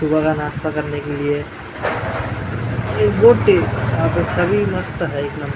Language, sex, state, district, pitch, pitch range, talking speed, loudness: Hindi, male, Maharashtra, Gondia, 145 Hz, 110-150 Hz, 185 wpm, -18 LUFS